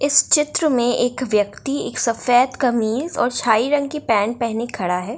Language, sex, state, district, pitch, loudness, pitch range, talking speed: Hindi, female, Bihar, Gaya, 245 Hz, -19 LUFS, 225-280 Hz, 160 wpm